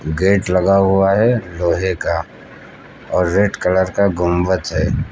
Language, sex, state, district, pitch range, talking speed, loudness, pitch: Hindi, male, Uttar Pradesh, Lucknow, 90-95 Hz, 140 wpm, -16 LUFS, 95 Hz